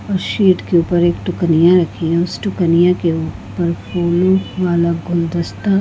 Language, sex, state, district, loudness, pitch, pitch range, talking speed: Hindi, female, Goa, North and South Goa, -16 LUFS, 175 Hz, 170-180 Hz, 155 wpm